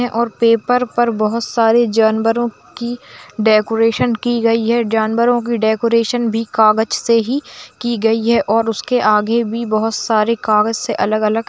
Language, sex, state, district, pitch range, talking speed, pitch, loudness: Hindi, female, Bihar, Kishanganj, 220-235 Hz, 145 wpm, 230 Hz, -15 LUFS